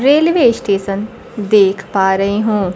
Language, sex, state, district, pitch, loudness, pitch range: Hindi, female, Bihar, Kaimur, 205 Hz, -14 LUFS, 195-235 Hz